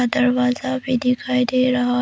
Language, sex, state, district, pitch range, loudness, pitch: Hindi, female, Arunachal Pradesh, Papum Pare, 245-255 Hz, -19 LUFS, 250 Hz